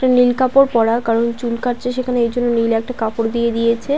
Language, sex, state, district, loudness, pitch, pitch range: Bengali, female, West Bengal, Paschim Medinipur, -17 LUFS, 235 Hz, 230-250 Hz